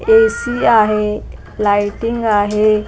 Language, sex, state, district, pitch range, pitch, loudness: Marathi, female, Maharashtra, Mumbai Suburban, 210-235 Hz, 215 Hz, -15 LUFS